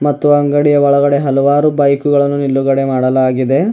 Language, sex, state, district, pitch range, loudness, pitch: Kannada, male, Karnataka, Bidar, 135-145 Hz, -12 LUFS, 140 Hz